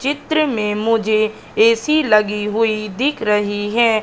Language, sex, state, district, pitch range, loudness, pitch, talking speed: Hindi, female, Madhya Pradesh, Katni, 210-280 Hz, -17 LUFS, 220 Hz, 135 wpm